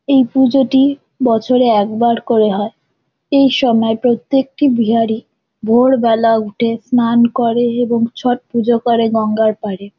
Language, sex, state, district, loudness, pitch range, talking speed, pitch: Bengali, female, West Bengal, Kolkata, -14 LUFS, 220-250 Hz, 120 wpm, 235 Hz